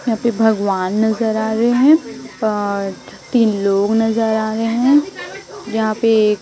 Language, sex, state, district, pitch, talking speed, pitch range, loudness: Hindi, female, Chhattisgarh, Raipur, 220 Hz, 160 wpm, 210-230 Hz, -16 LUFS